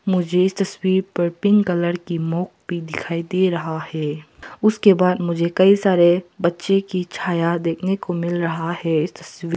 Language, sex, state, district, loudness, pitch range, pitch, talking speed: Hindi, female, Arunachal Pradesh, Papum Pare, -20 LUFS, 170-185 Hz, 175 Hz, 175 wpm